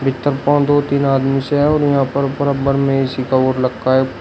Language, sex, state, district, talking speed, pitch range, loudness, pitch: Hindi, male, Uttar Pradesh, Shamli, 200 wpm, 130-145 Hz, -16 LUFS, 135 Hz